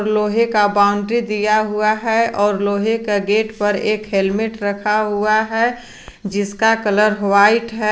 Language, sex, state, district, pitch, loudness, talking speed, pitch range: Hindi, female, Jharkhand, Garhwa, 215 Hz, -17 LUFS, 150 wpm, 205-220 Hz